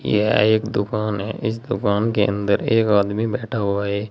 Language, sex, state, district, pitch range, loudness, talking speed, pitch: Hindi, male, Uttar Pradesh, Saharanpur, 100-110 Hz, -20 LUFS, 190 wpm, 105 Hz